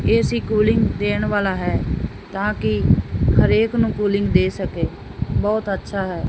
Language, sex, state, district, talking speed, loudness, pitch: Punjabi, female, Punjab, Fazilka, 135 wpm, -20 LUFS, 190 Hz